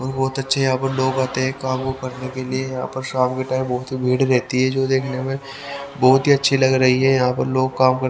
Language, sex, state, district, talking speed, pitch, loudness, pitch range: Hindi, male, Haryana, Rohtak, 275 wpm, 130 Hz, -19 LUFS, 130-135 Hz